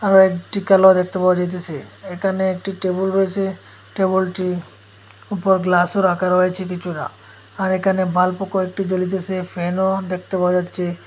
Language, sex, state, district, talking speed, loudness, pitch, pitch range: Bengali, male, Assam, Hailakandi, 135 wpm, -19 LUFS, 185 Hz, 180-190 Hz